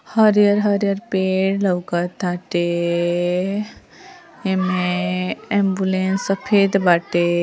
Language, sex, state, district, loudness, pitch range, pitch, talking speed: Bhojpuri, female, Uttar Pradesh, Ghazipur, -19 LUFS, 175-200 Hz, 190 Hz, 55 wpm